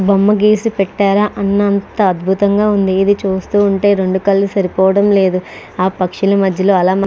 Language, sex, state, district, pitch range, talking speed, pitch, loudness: Telugu, female, Andhra Pradesh, Krishna, 190-205 Hz, 155 wpm, 195 Hz, -13 LUFS